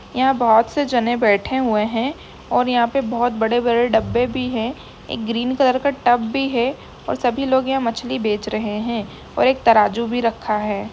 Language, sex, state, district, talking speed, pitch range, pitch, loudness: Hindi, female, Bihar, Jamui, 205 wpm, 225-260 Hz, 240 Hz, -19 LUFS